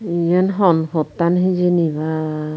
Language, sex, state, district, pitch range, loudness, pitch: Chakma, female, Tripura, Unakoti, 155-180 Hz, -18 LUFS, 170 Hz